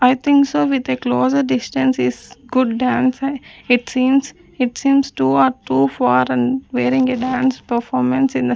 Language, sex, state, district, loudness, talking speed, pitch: English, female, Chandigarh, Chandigarh, -17 LUFS, 175 wpm, 245 Hz